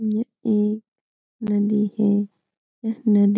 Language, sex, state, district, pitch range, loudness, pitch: Hindi, female, Bihar, Supaul, 205-220 Hz, -23 LUFS, 210 Hz